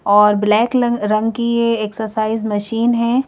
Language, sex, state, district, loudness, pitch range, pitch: Hindi, female, Madhya Pradesh, Bhopal, -16 LUFS, 210-235 Hz, 220 Hz